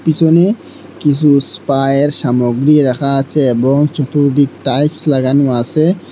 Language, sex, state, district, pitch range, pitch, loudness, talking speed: Bengali, male, Assam, Hailakandi, 135-150 Hz, 145 Hz, -13 LUFS, 110 wpm